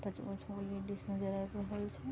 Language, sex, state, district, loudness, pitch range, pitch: Maithili, female, Bihar, Vaishali, -41 LUFS, 195-205 Hz, 200 Hz